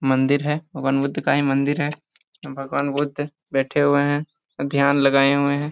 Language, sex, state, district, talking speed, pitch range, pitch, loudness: Hindi, male, Jharkhand, Jamtara, 170 wpm, 135-145 Hz, 140 Hz, -21 LUFS